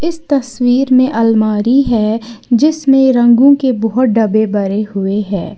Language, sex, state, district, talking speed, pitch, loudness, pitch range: Hindi, female, Uttar Pradesh, Lalitpur, 140 wpm, 240 Hz, -12 LUFS, 215-265 Hz